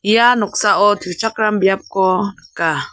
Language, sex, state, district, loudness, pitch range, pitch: Garo, female, Meghalaya, South Garo Hills, -16 LUFS, 195-220 Hz, 205 Hz